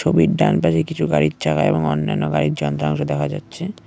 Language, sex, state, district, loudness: Bengali, male, West Bengal, Cooch Behar, -19 LUFS